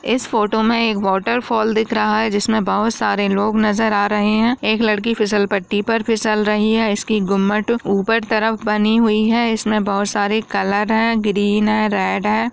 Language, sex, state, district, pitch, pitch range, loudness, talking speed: Hindi, female, Bihar, Jamui, 215 Hz, 205-225 Hz, -17 LUFS, 190 wpm